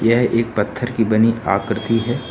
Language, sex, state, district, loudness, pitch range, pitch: Hindi, male, Uttar Pradesh, Lucknow, -18 LUFS, 110-120 Hz, 115 Hz